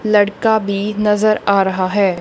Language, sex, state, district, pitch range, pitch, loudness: Hindi, female, Punjab, Kapurthala, 195-215 Hz, 205 Hz, -15 LUFS